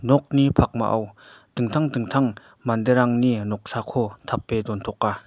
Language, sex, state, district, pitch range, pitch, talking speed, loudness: Garo, male, Meghalaya, North Garo Hills, 110-135 Hz, 120 Hz, 90 wpm, -23 LUFS